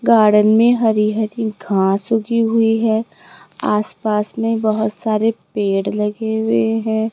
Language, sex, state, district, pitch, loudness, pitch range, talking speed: Hindi, female, Rajasthan, Jaipur, 220 Hz, -17 LUFS, 210-225 Hz, 135 wpm